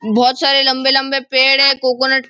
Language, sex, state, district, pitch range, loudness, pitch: Hindi, male, Maharashtra, Nagpur, 260-270 Hz, -12 LUFS, 265 Hz